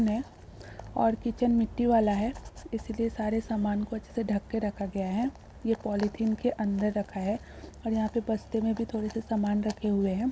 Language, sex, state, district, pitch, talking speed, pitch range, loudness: Hindi, female, Bihar, Jahanabad, 220 Hz, 205 wpm, 210-230 Hz, -30 LUFS